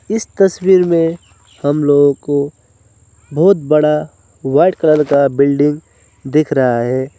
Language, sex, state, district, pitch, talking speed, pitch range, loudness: Hindi, male, West Bengal, Alipurduar, 145 Hz, 125 wpm, 130-155 Hz, -13 LUFS